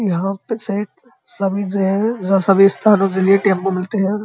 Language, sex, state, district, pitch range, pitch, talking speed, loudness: Hindi, male, Uttar Pradesh, Muzaffarnagar, 195-210 Hz, 195 Hz, 185 wpm, -16 LUFS